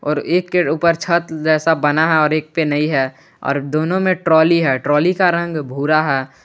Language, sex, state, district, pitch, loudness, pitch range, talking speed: Hindi, male, Jharkhand, Garhwa, 155 Hz, -16 LUFS, 150-170 Hz, 205 wpm